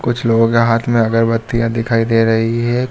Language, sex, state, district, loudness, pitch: Hindi, male, Jharkhand, Sahebganj, -15 LUFS, 115 Hz